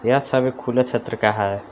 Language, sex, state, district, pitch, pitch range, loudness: Hindi, male, Jharkhand, Palamu, 120 Hz, 105-130 Hz, -21 LUFS